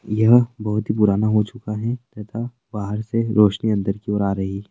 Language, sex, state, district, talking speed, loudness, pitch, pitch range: Hindi, male, Chhattisgarh, Sarguja, 205 wpm, -20 LUFS, 105 Hz, 105-115 Hz